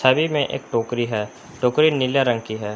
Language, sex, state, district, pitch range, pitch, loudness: Hindi, male, Jharkhand, Palamu, 115-140 Hz, 125 Hz, -21 LUFS